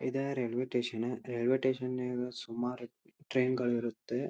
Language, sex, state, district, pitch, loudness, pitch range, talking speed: Kannada, male, Karnataka, Dharwad, 125 Hz, -34 LUFS, 120-130 Hz, 125 wpm